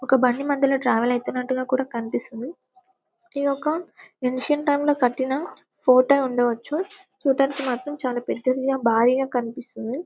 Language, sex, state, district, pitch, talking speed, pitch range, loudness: Telugu, female, Telangana, Karimnagar, 265 Hz, 125 wpm, 250-290 Hz, -23 LUFS